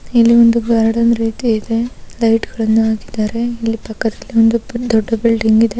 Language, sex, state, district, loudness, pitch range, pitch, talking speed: Kannada, female, Karnataka, Dharwad, -15 LUFS, 225-235 Hz, 230 Hz, 155 wpm